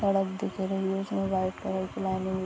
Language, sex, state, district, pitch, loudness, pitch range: Hindi, female, Jharkhand, Sahebganj, 190 Hz, -30 LUFS, 190-195 Hz